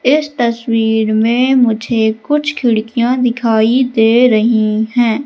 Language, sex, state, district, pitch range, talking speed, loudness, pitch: Hindi, female, Madhya Pradesh, Katni, 220-250 Hz, 115 wpm, -13 LUFS, 235 Hz